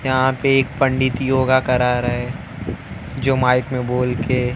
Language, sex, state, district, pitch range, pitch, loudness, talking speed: Hindi, female, Maharashtra, Mumbai Suburban, 125-130 Hz, 130 Hz, -19 LUFS, 160 wpm